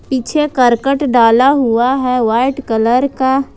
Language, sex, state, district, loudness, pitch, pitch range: Hindi, female, Jharkhand, Ranchi, -13 LUFS, 255 Hz, 240-275 Hz